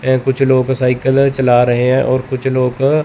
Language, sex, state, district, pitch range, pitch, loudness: Hindi, male, Chandigarh, Chandigarh, 125-135 Hz, 130 Hz, -14 LUFS